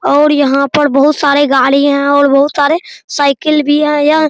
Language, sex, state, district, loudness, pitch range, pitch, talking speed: Hindi, male, Bihar, Araria, -10 LUFS, 280-300 Hz, 285 Hz, 210 wpm